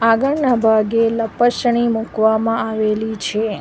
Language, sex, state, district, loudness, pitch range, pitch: Gujarati, female, Gujarat, Valsad, -17 LUFS, 220-235 Hz, 225 Hz